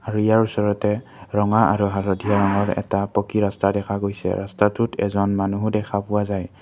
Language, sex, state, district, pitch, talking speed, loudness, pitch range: Assamese, male, Assam, Kamrup Metropolitan, 100 Hz, 165 wpm, -21 LUFS, 100-105 Hz